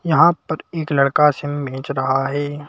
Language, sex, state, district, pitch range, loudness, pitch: Hindi, male, Madhya Pradesh, Bhopal, 140-155 Hz, -19 LUFS, 145 Hz